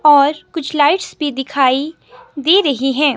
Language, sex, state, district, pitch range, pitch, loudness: Hindi, female, Himachal Pradesh, Shimla, 270-310 Hz, 290 Hz, -15 LUFS